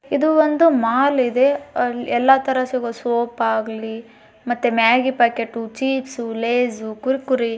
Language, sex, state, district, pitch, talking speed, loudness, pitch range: Kannada, male, Karnataka, Bijapur, 240 Hz, 135 wpm, -19 LUFS, 230-265 Hz